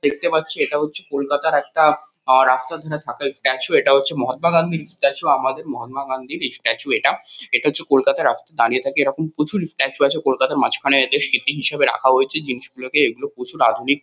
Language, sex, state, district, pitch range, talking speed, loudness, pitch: Bengali, male, West Bengal, Kolkata, 135-155 Hz, 190 wpm, -18 LUFS, 140 Hz